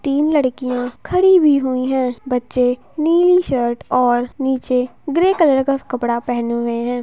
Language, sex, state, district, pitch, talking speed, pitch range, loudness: Hindi, female, Bihar, Jahanabad, 255 Hz, 155 wpm, 245-290 Hz, -17 LUFS